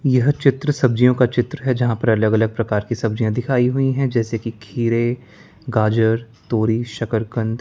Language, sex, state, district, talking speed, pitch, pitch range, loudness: Hindi, male, Chandigarh, Chandigarh, 175 wpm, 115 Hz, 110-125 Hz, -19 LUFS